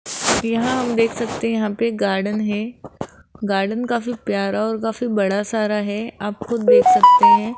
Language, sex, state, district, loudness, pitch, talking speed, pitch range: Hindi, female, Rajasthan, Jaipur, -18 LUFS, 225 Hz, 175 wpm, 210-235 Hz